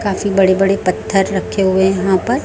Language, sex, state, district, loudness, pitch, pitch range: Hindi, female, Chhattisgarh, Raipur, -15 LUFS, 195 Hz, 190-200 Hz